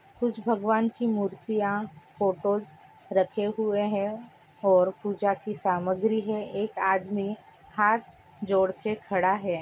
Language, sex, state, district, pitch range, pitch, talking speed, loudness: Hindi, female, Andhra Pradesh, Anantapur, 190-215 Hz, 205 Hz, 120 wpm, -27 LUFS